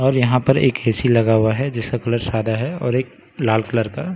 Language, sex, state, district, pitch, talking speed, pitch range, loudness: Hindi, male, Bihar, Katihar, 120 Hz, 245 wpm, 115-130 Hz, -18 LUFS